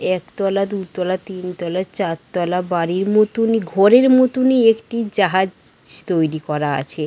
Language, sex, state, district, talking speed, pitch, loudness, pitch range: Bengali, female, West Bengal, Dakshin Dinajpur, 120 wpm, 190 Hz, -18 LUFS, 175-215 Hz